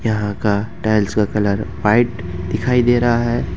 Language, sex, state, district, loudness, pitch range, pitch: Hindi, male, Jharkhand, Ranchi, -18 LUFS, 105-120 Hz, 110 Hz